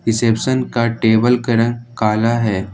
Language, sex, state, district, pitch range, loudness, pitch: Hindi, male, Jharkhand, Ranchi, 110-120 Hz, -16 LUFS, 115 Hz